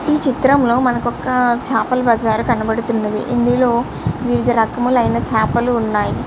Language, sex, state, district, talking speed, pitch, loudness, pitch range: Telugu, male, Andhra Pradesh, Srikakulam, 115 wpm, 240 Hz, -16 LUFS, 230-250 Hz